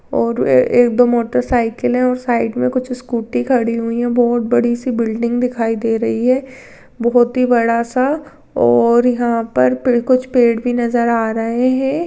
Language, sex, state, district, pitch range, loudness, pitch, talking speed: Hindi, female, Maharashtra, Chandrapur, 230-250 Hz, -15 LUFS, 240 Hz, 180 wpm